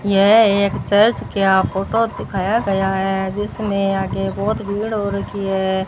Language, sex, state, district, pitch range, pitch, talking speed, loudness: Hindi, female, Rajasthan, Bikaner, 195-205 Hz, 200 Hz, 155 wpm, -18 LUFS